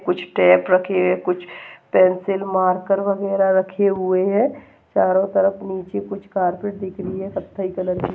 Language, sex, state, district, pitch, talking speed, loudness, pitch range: Hindi, female, Uttarakhand, Tehri Garhwal, 190 Hz, 160 wpm, -20 LUFS, 185-195 Hz